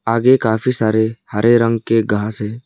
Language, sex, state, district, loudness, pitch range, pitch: Hindi, male, Arunachal Pradesh, Lower Dibang Valley, -15 LUFS, 110-115 Hz, 115 Hz